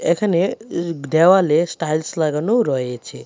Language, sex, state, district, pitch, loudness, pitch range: Bengali, male, Tripura, West Tripura, 165 Hz, -18 LUFS, 150-180 Hz